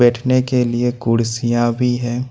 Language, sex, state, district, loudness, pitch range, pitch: Hindi, male, Jharkhand, Ranchi, -17 LUFS, 120-125 Hz, 120 Hz